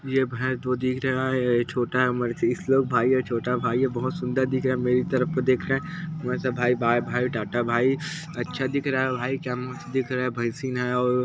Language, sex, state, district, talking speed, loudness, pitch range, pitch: Hindi, male, Chhattisgarh, Korba, 225 wpm, -25 LUFS, 125-130 Hz, 130 Hz